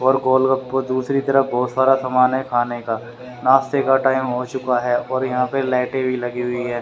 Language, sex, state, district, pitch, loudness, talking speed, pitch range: Hindi, male, Haryana, Rohtak, 130 Hz, -19 LUFS, 210 wpm, 125-130 Hz